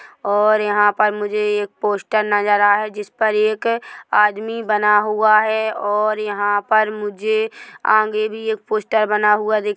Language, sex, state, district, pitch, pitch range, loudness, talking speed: Hindi, female, Chhattisgarh, Bilaspur, 215 Hz, 210-215 Hz, -18 LUFS, 170 wpm